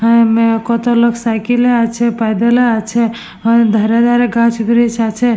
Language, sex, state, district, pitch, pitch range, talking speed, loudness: Bengali, female, West Bengal, Purulia, 230 Hz, 225-235 Hz, 165 wpm, -13 LUFS